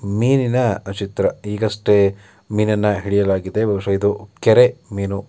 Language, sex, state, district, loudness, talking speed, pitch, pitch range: Kannada, male, Karnataka, Mysore, -18 LUFS, 100 wpm, 105 Hz, 100-110 Hz